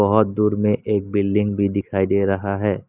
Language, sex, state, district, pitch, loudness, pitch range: Hindi, male, Assam, Kamrup Metropolitan, 100 Hz, -20 LUFS, 100-105 Hz